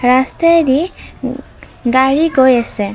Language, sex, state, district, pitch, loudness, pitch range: Assamese, female, Assam, Kamrup Metropolitan, 260 Hz, -13 LUFS, 245-320 Hz